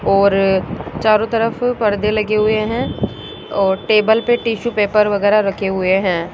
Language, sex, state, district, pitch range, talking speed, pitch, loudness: Hindi, female, Rajasthan, Jaipur, 195-220 Hz, 150 wpm, 210 Hz, -16 LUFS